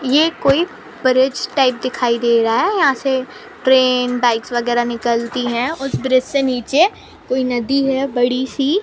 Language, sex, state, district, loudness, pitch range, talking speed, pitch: Hindi, female, Jharkhand, Sahebganj, -17 LUFS, 245-275 Hz, 165 wpm, 255 Hz